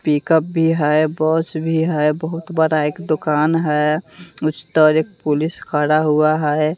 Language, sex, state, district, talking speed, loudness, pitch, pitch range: Hindi, female, Bihar, West Champaran, 160 wpm, -17 LUFS, 155 Hz, 150-160 Hz